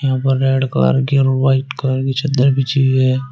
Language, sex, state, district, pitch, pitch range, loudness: Hindi, male, Uttar Pradesh, Shamli, 135 Hz, 130-135 Hz, -15 LUFS